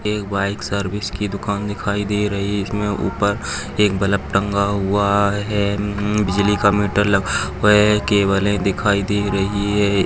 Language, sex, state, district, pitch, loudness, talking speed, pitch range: Hindi, male, Maharashtra, Chandrapur, 100 Hz, -19 LUFS, 165 wpm, 100-105 Hz